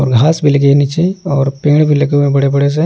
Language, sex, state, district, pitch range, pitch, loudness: Hindi, male, Bihar, Kaimur, 140-155 Hz, 145 Hz, -12 LUFS